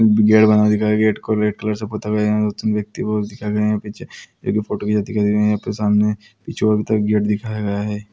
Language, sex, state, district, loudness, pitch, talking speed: Hindi, male, Bihar, Araria, -18 LUFS, 105 Hz, 260 wpm